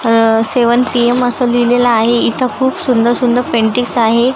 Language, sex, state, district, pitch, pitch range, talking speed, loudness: Marathi, female, Maharashtra, Gondia, 240 Hz, 230-250 Hz, 165 wpm, -12 LUFS